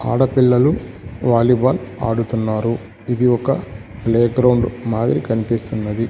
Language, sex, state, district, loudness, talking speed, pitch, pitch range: Telugu, male, Andhra Pradesh, Sri Satya Sai, -18 LUFS, 80 wpm, 115 Hz, 110-125 Hz